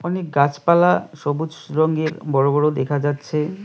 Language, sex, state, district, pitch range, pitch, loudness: Bengali, male, West Bengal, Cooch Behar, 145-160 Hz, 150 Hz, -19 LUFS